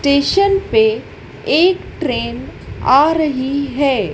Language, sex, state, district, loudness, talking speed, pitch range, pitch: Hindi, female, Madhya Pradesh, Dhar, -15 LUFS, 100 wpm, 280-385 Hz, 295 Hz